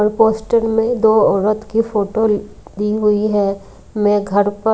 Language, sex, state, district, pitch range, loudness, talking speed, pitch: Hindi, female, Maharashtra, Mumbai Suburban, 205-220 Hz, -16 LUFS, 190 wpm, 215 Hz